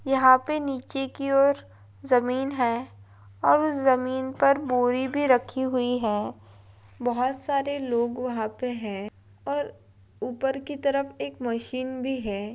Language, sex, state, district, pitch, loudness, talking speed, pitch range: Hindi, female, Bihar, Madhepura, 250 Hz, -26 LUFS, 145 wpm, 200-270 Hz